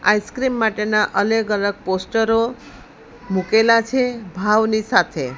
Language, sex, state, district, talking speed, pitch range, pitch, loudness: Gujarati, female, Gujarat, Valsad, 100 wpm, 200-230 Hz, 220 Hz, -18 LUFS